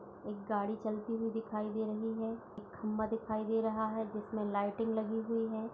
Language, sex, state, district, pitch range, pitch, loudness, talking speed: Hindi, female, Uttar Pradesh, Budaun, 215-225 Hz, 220 Hz, -37 LUFS, 220 wpm